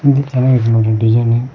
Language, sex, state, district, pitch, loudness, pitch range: Kannada, male, Karnataka, Koppal, 120 Hz, -13 LUFS, 115-130 Hz